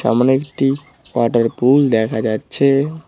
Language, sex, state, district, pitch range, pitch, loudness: Bengali, male, West Bengal, Cooch Behar, 115-140 Hz, 130 Hz, -16 LUFS